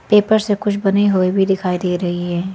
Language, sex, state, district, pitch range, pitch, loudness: Hindi, female, Arunachal Pradesh, Lower Dibang Valley, 180-205 Hz, 195 Hz, -17 LUFS